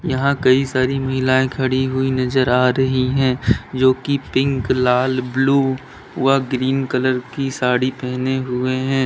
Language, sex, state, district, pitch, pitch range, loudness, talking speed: Hindi, male, Uttar Pradesh, Lalitpur, 130 Hz, 130-135 Hz, -18 LUFS, 150 wpm